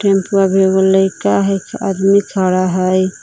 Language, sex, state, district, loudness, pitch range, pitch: Magahi, female, Jharkhand, Palamu, -14 LUFS, 185-195 Hz, 190 Hz